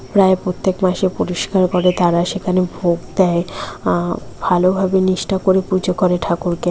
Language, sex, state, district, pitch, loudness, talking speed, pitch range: Bengali, female, West Bengal, North 24 Parganas, 185 Hz, -17 LUFS, 135 wpm, 180-190 Hz